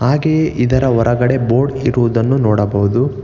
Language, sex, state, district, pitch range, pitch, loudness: Kannada, male, Karnataka, Bangalore, 115-130 Hz, 125 Hz, -14 LUFS